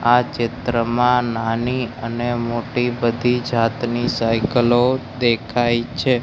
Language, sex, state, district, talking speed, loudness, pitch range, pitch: Gujarati, male, Gujarat, Gandhinagar, 105 wpm, -19 LUFS, 115-125 Hz, 120 Hz